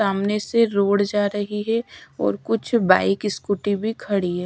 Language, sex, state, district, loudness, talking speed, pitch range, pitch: Hindi, female, Odisha, Sambalpur, -21 LUFS, 175 wpm, 200-215 Hz, 205 Hz